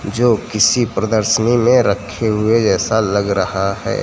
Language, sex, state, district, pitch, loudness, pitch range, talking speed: Hindi, male, Gujarat, Gandhinagar, 110 Hz, -15 LUFS, 100-115 Hz, 150 wpm